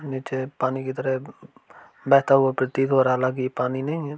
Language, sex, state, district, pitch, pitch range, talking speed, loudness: Hindi, male, Uttar Pradesh, Varanasi, 130 Hz, 130-135 Hz, 215 wpm, -23 LUFS